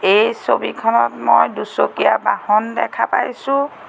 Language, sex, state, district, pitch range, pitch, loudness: Assamese, female, Assam, Sonitpur, 200-235 Hz, 225 Hz, -17 LUFS